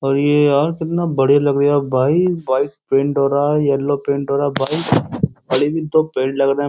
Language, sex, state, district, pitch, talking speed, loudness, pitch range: Hindi, male, Uttar Pradesh, Jyotiba Phule Nagar, 140 Hz, 180 wpm, -17 LUFS, 140-150 Hz